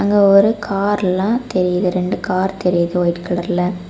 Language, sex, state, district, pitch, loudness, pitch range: Tamil, female, Tamil Nadu, Kanyakumari, 185 Hz, -17 LUFS, 180-200 Hz